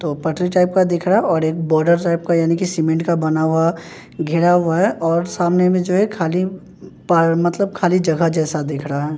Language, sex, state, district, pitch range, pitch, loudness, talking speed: Hindi, male, Bihar, Katihar, 160-180 Hz, 170 Hz, -17 LUFS, 220 wpm